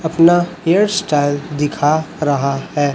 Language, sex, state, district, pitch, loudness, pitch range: Hindi, male, Chhattisgarh, Raipur, 150 Hz, -16 LUFS, 145-170 Hz